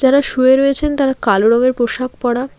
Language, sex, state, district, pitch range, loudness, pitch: Bengali, female, West Bengal, Alipurduar, 245-275 Hz, -14 LUFS, 255 Hz